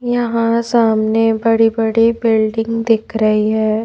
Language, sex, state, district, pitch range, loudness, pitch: Hindi, female, Madhya Pradesh, Bhopal, 220-230 Hz, -15 LUFS, 225 Hz